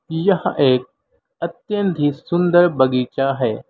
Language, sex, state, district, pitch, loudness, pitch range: Hindi, male, Uttar Pradesh, Lalitpur, 160 Hz, -18 LUFS, 135-175 Hz